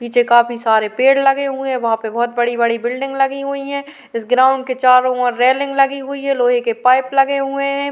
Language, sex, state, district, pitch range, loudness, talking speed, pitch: Hindi, female, Uttar Pradesh, Varanasi, 240-275 Hz, -16 LUFS, 240 wpm, 255 Hz